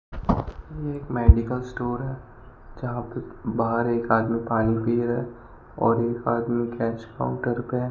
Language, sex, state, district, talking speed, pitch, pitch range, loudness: Hindi, male, Rajasthan, Bikaner, 150 wpm, 120 Hz, 115-125 Hz, -25 LUFS